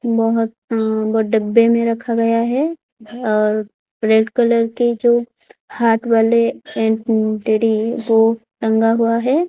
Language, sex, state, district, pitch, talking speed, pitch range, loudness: Hindi, female, Odisha, Khordha, 230 Hz, 115 wpm, 220-235 Hz, -17 LUFS